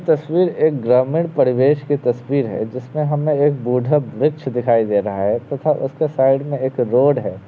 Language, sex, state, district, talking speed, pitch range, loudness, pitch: Hindi, male, Uttar Pradesh, Varanasi, 185 wpm, 125-150 Hz, -18 LUFS, 140 Hz